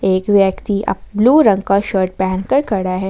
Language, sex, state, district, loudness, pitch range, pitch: Hindi, female, Jharkhand, Ranchi, -15 LUFS, 190-210 Hz, 195 Hz